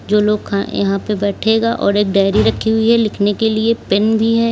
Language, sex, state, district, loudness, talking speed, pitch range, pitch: Hindi, female, Uttar Pradesh, Lalitpur, -15 LUFS, 225 wpm, 200-220 Hz, 210 Hz